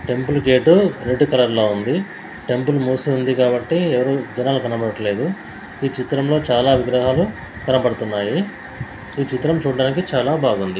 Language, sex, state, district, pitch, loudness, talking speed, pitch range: Telugu, male, Andhra Pradesh, Chittoor, 130 Hz, -18 LUFS, 130 wpm, 125-145 Hz